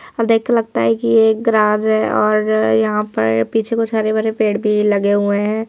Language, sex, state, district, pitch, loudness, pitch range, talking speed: Hindi, male, Madhya Pradesh, Bhopal, 215 Hz, -16 LUFS, 205-220 Hz, 200 wpm